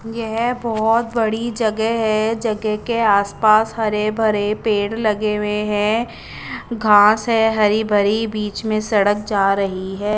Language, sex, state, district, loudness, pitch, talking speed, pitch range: Hindi, female, Chandigarh, Chandigarh, -18 LUFS, 215 Hz, 145 wpm, 210-225 Hz